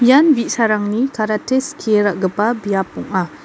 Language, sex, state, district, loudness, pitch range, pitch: Garo, female, Meghalaya, North Garo Hills, -17 LUFS, 205-250 Hz, 215 Hz